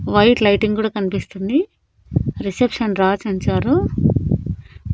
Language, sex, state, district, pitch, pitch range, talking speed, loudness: Telugu, female, Andhra Pradesh, Annamaya, 205 Hz, 190-220 Hz, 85 wpm, -18 LUFS